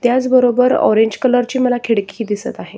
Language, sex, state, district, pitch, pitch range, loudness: Marathi, male, Maharashtra, Solapur, 245 Hz, 225-255 Hz, -15 LUFS